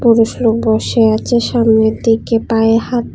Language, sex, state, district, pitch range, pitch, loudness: Bengali, female, Tripura, West Tripura, 225-235 Hz, 225 Hz, -13 LUFS